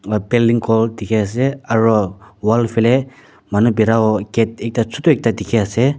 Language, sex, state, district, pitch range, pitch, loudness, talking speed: Nagamese, male, Nagaland, Dimapur, 105-120 Hz, 115 Hz, -16 LUFS, 160 wpm